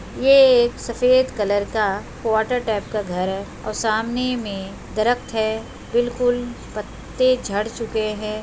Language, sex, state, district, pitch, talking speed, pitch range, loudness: Hindi, female, Uttar Pradesh, Budaun, 220 Hz, 150 wpm, 210-245 Hz, -21 LUFS